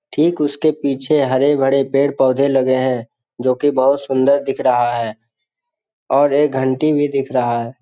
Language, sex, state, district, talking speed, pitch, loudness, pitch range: Hindi, male, Bihar, Jamui, 170 wpm, 135 Hz, -16 LUFS, 130-145 Hz